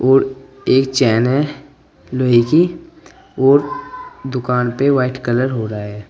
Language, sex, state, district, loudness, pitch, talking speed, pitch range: Hindi, male, Uttar Pradesh, Saharanpur, -16 LUFS, 130 Hz, 135 wpm, 125-145 Hz